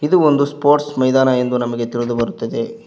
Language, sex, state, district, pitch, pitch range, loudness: Kannada, male, Karnataka, Koppal, 135 Hz, 120-150 Hz, -17 LUFS